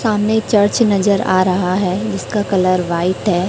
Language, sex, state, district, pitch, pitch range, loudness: Hindi, female, Chhattisgarh, Raipur, 195 Hz, 185-210 Hz, -15 LUFS